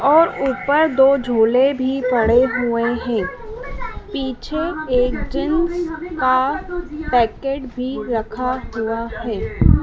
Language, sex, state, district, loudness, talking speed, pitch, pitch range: Hindi, female, Madhya Pradesh, Dhar, -19 LUFS, 105 wpm, 260 Hz, 240-310 Hz